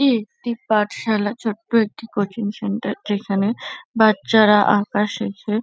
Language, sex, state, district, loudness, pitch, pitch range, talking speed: Bengali, female, West Bengal, Kolkata, -20 LUFS, 215 Hz, 205-225 Hz, 105 wpm